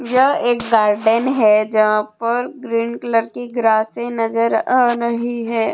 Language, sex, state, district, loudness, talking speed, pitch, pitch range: Hindi, female, Jharkhand, Deoghar, -17 LUFS, 145 wpm, 230 Hz, 220-240 Hz